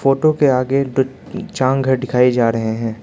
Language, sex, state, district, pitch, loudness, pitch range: Hindi, male, Arunachal Pradesh, Lower Dibang Valley, 130 Hz, -16 LUFS, 125-135 Hz